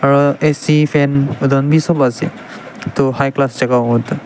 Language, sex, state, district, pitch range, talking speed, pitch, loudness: Nagamese, male, Nagaland, Dimapur, 135-150 Hz, 195 wpm, 140 Hz, -14 LUFS